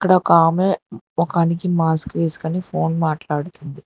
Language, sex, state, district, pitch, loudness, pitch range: Telugu, female, Telangana, Hyderabad, 170 Hz, -18 LUFS, 160-180 Hz